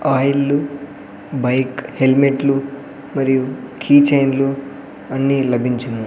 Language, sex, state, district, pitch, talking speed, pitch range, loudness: Telugu, male, Andhra Pradesh, Sri Satya Sai, 135 Hz, 80 wpm, 130-140 Hz, -17 LUFS